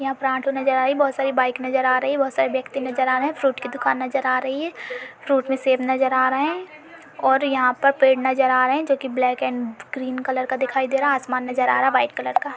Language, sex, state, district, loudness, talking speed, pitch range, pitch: Hindi, female, Uttar Pradesh, Budaun, -21 LUFS, 295 wpm, 255-275 Hz, 265 Hz